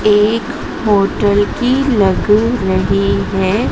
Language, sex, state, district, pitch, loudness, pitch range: Hindi, female, Madhya Pradesh, Dhar, 210 Hz, -14 LUFS, 195-230 Hz